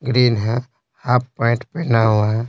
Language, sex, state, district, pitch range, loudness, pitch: Hindi, male, Bihar, Patna, 115-125 Hz, -18 LUFS, 120 Hz